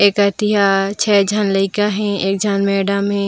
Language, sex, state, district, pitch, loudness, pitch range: Chhattisgarhi, female, Chhattisgarh, Raigarh, 200 Hz, -16 LUFS, 195-205 Hz